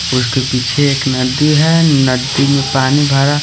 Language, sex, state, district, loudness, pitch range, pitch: Hindi, male, Haryana, Rohtak, -12 LUFS, 130-145 Hz, 135 Hz